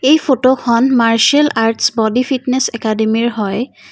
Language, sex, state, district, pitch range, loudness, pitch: Assamese, female, Assam, Kamrup Metropolitan, 225-265 Hz, -14 LUFS, 240 Hz